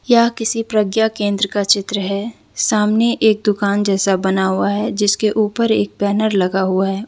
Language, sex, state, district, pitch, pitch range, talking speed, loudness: Hindi, female, Jharkhand, Deoghar, 205 Hz, 195-220 Hz, 180 wpm, -16 LUFS